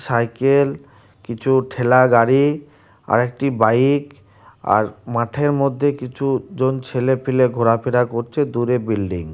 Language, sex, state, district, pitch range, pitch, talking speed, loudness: Bengali, male, West Bengal, Purulia, 115-135 Hz, 125 Hz, 115 wpm, -18 LUFS